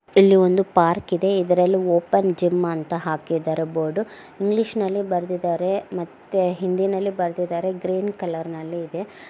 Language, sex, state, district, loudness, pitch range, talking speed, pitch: Kannada, female, Karnataka, Mysore, -22 LUFS, 170-195 Hz, 130 wpm, 180 Hz